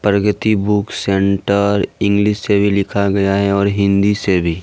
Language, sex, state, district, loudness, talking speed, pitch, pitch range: Hindi, male, Jharkhand, Ranchi, -15 LUFS, 170 wpm, 100 Hz, 100-105 Hz